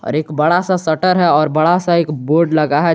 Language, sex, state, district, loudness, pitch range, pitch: Hindi, male, Jharkhand, Garhwa, -14 LUFS, 155-175 Hz, 165 Hz